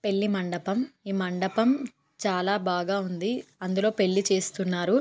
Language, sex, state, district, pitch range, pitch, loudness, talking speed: Telugu, female, Telangana, Karimnagar, 185-210 Hz, 195 Hz, -27 LUFS, 120 wpm